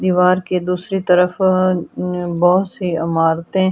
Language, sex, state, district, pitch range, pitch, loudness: Hindi, female, Delhi, New Delhi, 175-185 Hz, 180 Hz, -17 LUFS